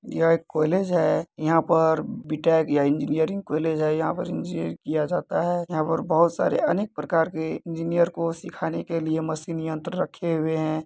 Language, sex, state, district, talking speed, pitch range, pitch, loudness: Hindi, male, Bihar, Muzaffarpur, 190 wpm, 155-170 Hz, 160 Hz, -24 LUFS